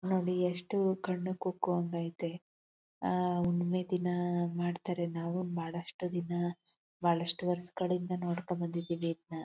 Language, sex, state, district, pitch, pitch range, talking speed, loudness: Kannada, female, Karnataka, Chamarajanagar, 175 Hz, 170-180 Hz, 110 wpm, -34 LUFS